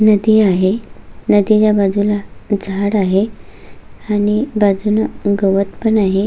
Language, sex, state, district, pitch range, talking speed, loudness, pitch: Marathi, female, Maharashtra, Solapur, 200-215 Hz, 105 wpm, -15 LUFS, 205 Hz